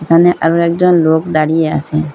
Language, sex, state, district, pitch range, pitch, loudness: Bengali, female, Assam, Hailakandi, 155-170 Hz, 165 Hz, -12 LUFS